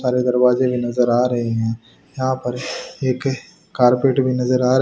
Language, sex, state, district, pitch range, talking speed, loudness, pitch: Hindi, male, Haryana, Rohtak, 125-130 Hz, 185 wpm, -19 LUFS, 125 Hz